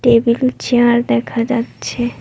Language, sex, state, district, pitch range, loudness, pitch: Bengali, female, West Bengal, Cooch Behar, 235-245 Hz, -16 LUFS, 240 Hz